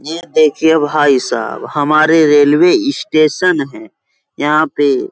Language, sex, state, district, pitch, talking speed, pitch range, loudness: Hindi, male, Uttar Pradesh, Etah, 155 Hz, 130 wpm, 145-160 Hz, -12 LUFS